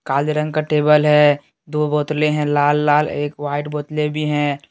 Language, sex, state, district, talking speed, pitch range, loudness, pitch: Hindi, male, Jharkhand, Deoghar, 190 wpm, 145-150 Hz, -18 LUFS, 150 Hz